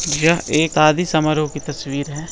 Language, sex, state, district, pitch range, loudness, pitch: Hindi, male, Bihar, Bhagalpur, 150-160 Hz, -18 LUFS, 155 Hz